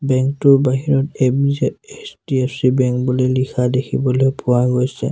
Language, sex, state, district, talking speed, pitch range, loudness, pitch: Assamese, male, Assam, Sonitpur, 130 wpm, 130-140 Hz, -17 LUFS, 130 Hz